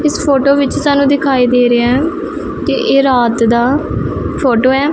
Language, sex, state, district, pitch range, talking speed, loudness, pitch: Punjabi, female, Punjab, Pathankot, 245-290 Hz, 170 wpm, -12 LUFS, 275 Hz